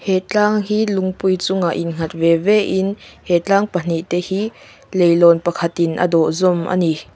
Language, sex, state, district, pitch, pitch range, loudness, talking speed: Mizo, female, Mizoram, Aizawl, 180 Hz, 170-195 Hz, -17 LUFS, 175 wpm